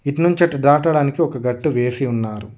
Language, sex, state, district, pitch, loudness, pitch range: Telugu, male, Telangana, Hyderabad, 140 Hz, -18 LUFS, 125-160 Hz